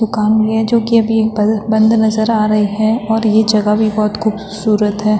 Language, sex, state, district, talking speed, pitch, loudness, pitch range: Hindi, female, Uttarakhand, Tehri Garhwal, 205 wpm, 215 Hz, -14 LUFS, 210-220 Hz